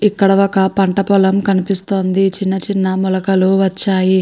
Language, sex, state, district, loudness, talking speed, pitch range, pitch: Telugu, female, Andhra Pradesh, Guntur, -14 LUFS, 130 wpm, 190-195 Hz, 195 Hz